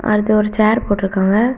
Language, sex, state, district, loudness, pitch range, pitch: Tamil, female, Tamil Nadu, Kanyakumari, -15 LUFS, 205-220 Hz, 215 Hz